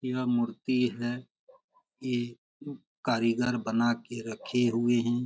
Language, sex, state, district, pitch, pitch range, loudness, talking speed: Hindi, male, Bihar, Jamui, 120 Hz, 115-125 Hz, -30 LUFS, 115 wpm